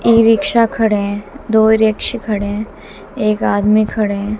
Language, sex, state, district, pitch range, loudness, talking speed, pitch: Hindi, female, Haryana, Jhajjar, 205-225 Hz, -15 LUFS, 165 wpm, 215 Hz